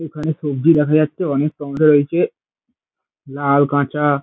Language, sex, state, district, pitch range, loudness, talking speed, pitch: Bengali, male, West Bengal, Dakshin Dinajpur, 145-155 Hz, -17 LUFS, 140 wpm, 150 Hz